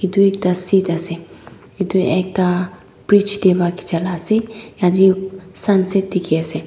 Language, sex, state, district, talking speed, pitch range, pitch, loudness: Nagamese, female, Nagaland, Dimapur, 135 wpm, 180-195 Hz, 185 Hz, -17 LUFS